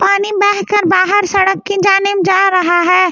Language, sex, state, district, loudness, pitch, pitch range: Hindi, female, Delhi, New Delhi, -12 LUFS, 390 Hz, 375-400 Hz